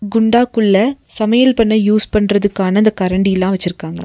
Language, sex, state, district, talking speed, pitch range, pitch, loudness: Tamil, female, Tamil Nadu, Nilgiris, 135 wpm, 195-225 Hz, 210 Hz, -14 LUFS